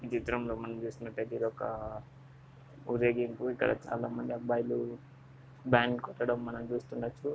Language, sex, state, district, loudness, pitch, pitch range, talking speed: Telugu, male, Andhra Pradesh, Visakhapatnam, -34 LUFS, 120 Hz, 115-135 Hz, 105 wpm